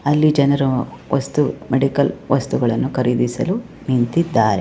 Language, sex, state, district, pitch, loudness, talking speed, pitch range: Kannada, female, Karnataka, Chamarajanagar, 130 Hz, -18 LUFS, 90 wpm, 125-150 Hz